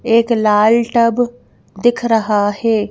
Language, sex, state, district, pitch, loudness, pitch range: Hindi, female, Madhya Pradesh, Bhopal, 230 Hz, -14 LUFS, 215-235 Hz